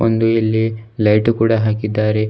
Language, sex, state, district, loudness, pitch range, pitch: Kannada, male, Karnataka, Bidar, -16 LUFS, 110-115 Hz, 110 Hz